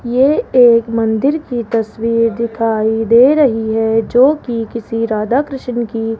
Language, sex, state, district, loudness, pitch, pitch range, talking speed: Hindi, female, Rajasthan, Jaipur, -14 LUFS, 230 Hz, 225-250 Hz, 155 wpm